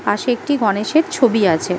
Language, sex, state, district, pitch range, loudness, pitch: Bengali, female, West Bengal, Malda, 205-280 Hz, -17 LUFS, 225 Hz